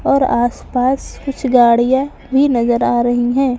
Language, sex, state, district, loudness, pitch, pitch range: Hindi, female, Maharashtra, Mumbai Suburban, -15 LUFS, 255 Hz, 240-270 Hz